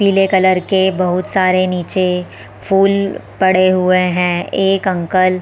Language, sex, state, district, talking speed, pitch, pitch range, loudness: Hindi, female, Chhattisgarh, Bilaspur, 145 wpm, 185 Hz, 180-195 Hz, -14 LUFS